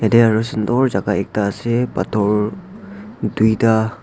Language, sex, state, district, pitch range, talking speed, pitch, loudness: Nagamese, male, Nagaland, Dimapur, 105-125 Hz, 120 wpm, 110 Hz, -18 LUFS